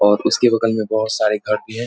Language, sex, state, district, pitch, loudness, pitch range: Hindi, male, Bihar, Lakhisarai, 110 Hz, -18 LUFS, 105-115 Hz